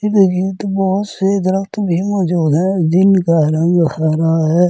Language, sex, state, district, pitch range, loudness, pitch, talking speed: Hindi, male, Delhi, New Delhi, 165-195 Hz, -15 LUFS, 185 Hz, 155 wpm